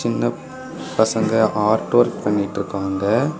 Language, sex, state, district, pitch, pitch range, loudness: Tamil, male, Tamil Nadu, Kanyakumari, 110 Hz, 100-115 Hz, -19 LUFS